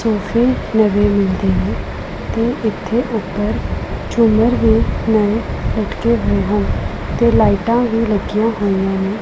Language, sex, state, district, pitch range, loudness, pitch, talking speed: Punjabi, female, Punjab, Pathankot, 200-230 Hz, -16 LUFS, 215 Hz, 125 wpm